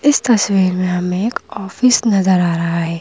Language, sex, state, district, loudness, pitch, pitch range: Hindi, female, Madhya Pradesh, Bhopal, -15 LUFS, 190 Hz, 180-230 Hz